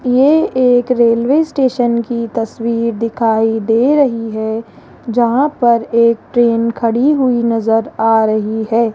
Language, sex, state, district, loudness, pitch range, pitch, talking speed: Hindi, female, Rajasthan, Jaipur, -14 LUFS, 225-250 Hz, 230 Hz, 135 wpm